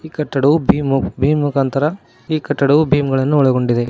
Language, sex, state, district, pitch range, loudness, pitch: Kannada, male, Karnataka, Koppal, 135-150 Hz, -16 LUFS, 145 Hz